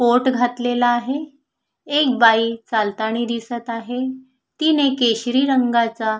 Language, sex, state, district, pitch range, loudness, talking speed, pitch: Marathi, female, Maharashtra, Sindhudurg, 230-260 Hz, -19 LUFS, 105 wpm, 245 Hz